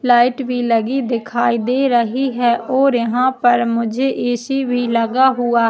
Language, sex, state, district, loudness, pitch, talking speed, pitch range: Hindi, female, Chhattisgarh, Jashpur, -16 LUFS, 245 Hz, 170 wpm, 235-260 Hz